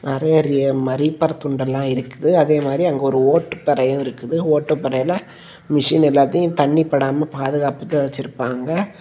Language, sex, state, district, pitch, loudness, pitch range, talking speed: Tamil, male, Tamil Nadu, Kanyakumari, 140 Hz, -18 LUFS, 135-155 Hz, 115 wpm